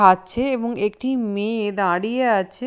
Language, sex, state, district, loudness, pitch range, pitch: Bengali, female, Odisha, Nuapada, -21 LUFS, 200-250 Hz, 215 Hz